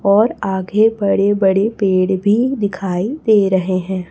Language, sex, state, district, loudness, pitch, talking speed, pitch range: Hindi, female, Chhattisgarh, Raipur, -16 LUFS, 195 Hz, 145 wpm, 190-210 Hz